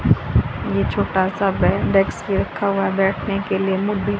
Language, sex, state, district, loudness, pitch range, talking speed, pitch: Hindi, female, Haryana, Charkhi Dadri, -20 LUFS, 135-195 Hz, 185 wpm, 195 Hz